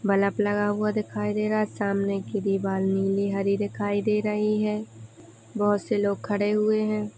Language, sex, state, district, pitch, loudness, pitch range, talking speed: Hindi, female, Bihar, Purnia, 205 Hz, -25 LUFS, 195-210 Hz, 185 wpm